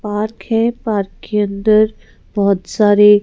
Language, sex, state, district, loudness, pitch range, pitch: Hindi, female, Madhya Pradesh, Bhopal, -15 LUFS, 205-215 Hz, 210 Hz